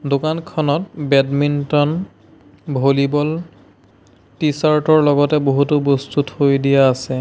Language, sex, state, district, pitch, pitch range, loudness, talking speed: Assamese, male, Assam, Sonitpur, 145 Hz, 135-150 Hz, -17 LUFS, 90 wpm